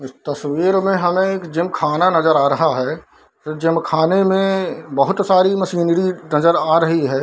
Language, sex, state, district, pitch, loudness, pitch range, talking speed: Hindi, male, Bihar, Darbhanga, 165 Hz, -17 LUFS, 155-185 Hz, 165 wpm